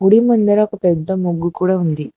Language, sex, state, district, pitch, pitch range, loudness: Telugu, female, Telangana, Hyderabad, 185 Hz, 175-210 Hz, -16 LUFS